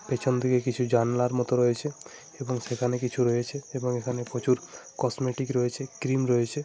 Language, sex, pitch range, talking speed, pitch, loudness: Bengali, male, 125-130 Hz, 160 wpm, 125 Hz, -27 LUFS